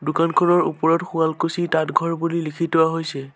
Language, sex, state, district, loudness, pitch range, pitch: Assamese, male, Assam, Sonitpur, -20 LUFS, 160-170 Hz, 165 Hz